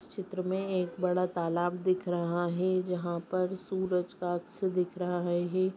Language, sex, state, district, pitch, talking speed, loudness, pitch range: Hindi, male, Bihar, Muzaffarpur, 180 Hz, 175 wpm, -32 LUFS, 175-185 Hz